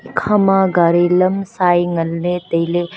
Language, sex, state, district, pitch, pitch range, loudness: Wancho, female, Arunachal Pradesh, Longding, 175 Hz, 170-190 Hz, -15 LUFS